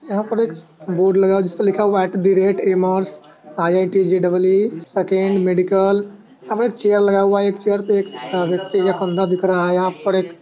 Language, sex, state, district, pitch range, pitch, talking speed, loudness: Hindi, male, Bihar, Sitamarhi, 185-200 Hz, 190 Hz, 225 wpm, -17 LUFS